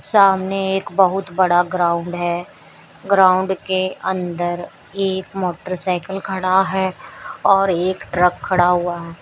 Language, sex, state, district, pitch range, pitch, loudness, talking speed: Hindi, female, Uttar Pradesh, Shamli, 175-190 Hz, 185 Hz, -18 LUFS, 125 wpm